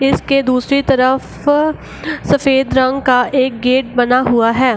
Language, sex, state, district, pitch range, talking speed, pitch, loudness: Hindi, female, Bihar, Gaya, 250-275 Hz, 150 wpm, 260 Hz, -14 LUFS